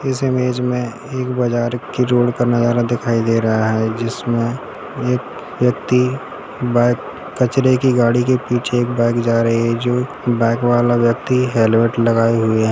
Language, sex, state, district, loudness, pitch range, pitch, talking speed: Hindi, male, Bihar, Sitamarhi, -17 LUFS, 115-125 Hz, 120 Hz, 165 wpm